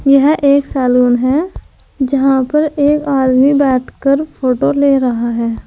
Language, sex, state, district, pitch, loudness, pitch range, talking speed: Hindi, female, Uttar Pradesh, Saharanpur, 275 Hz, -13 LUFS, 255-285 Hz, 140 wpm